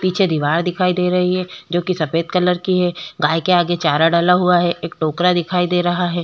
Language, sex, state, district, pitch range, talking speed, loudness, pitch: Hindi, female, Chhattisgarh, Korba, 170-180 Hz, 250 wpm, -17 LUFS, 180 Hz